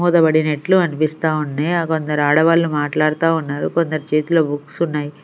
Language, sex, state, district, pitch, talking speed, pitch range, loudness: Telugu, female, Andhra Pradesh, Sri Satya Sai, 155 Hz, 135 wpm, 150-165 Hz, -17 LUFS